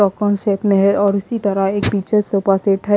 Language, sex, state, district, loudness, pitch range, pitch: Hindi, female, Haryana, Jhajjar, -16 LUFS, 195-205 Hz, 200 Hz